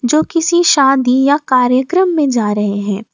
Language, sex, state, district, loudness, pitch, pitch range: Hindi, female, Jharkhand, Ranchi, -13 LUFS, 270 Hz, 245-310 Hz